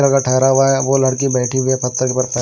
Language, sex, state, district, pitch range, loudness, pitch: Hindi, male, Haryana, Rohtak, 130-135 Hz, -15 LUFS, 130 Hz